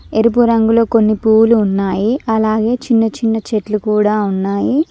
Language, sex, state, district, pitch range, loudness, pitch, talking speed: Telugu, female, Telangana, Mahabubabad, 210-230 Hz, -14 LUFS, 220 Hz, 135 wpm